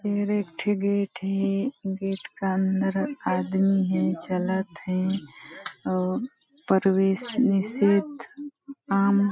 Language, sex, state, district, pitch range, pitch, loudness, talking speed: Hindi, female, Chhattisgarh, Balrampur, 190-205 Hz, 195 Hz, -25 LUFS, 105 wpm